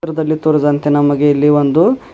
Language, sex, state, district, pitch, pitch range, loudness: Kannada, male, Karnataka, Bidar, 150 Hz, 145-155 Hz, -13 LUFS